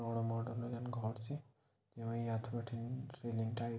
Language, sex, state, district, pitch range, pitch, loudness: Garhwali, male, Uttarakhand, Tehri Garhwal, 115-120 Hz, 115 Hz, -42 LUFS